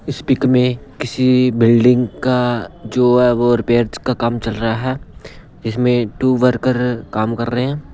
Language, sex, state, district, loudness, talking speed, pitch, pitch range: Hindi, male, Punjab, Pathankot, -16 LUFS, 165 wpm, 125 Hz, 115-125 Hz